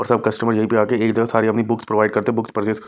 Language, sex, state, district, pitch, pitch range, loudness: Hindi, male, Punjab, Kapurthala, 110 Hz, 110-115 Hz, -19 LUFS